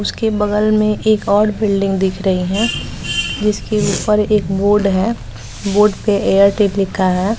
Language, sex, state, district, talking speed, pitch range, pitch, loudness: Hindi, female, Bihar, West Champaran, 155 wpm, 195-210 Hz, 205 Hz, -15 LUFS